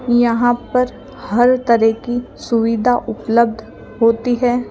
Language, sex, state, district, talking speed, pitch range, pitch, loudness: Hindi, female, Rajasthan, Jaipur, 115 wpm, 230-250 Hz, 240 Hz, -16 LUFS